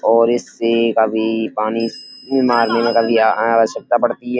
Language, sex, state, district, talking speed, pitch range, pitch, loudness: Hindi, male, Uttar Pradesh, Etah, 95 wpm, 110-120 Hz, 115 Hz, -16 LUFS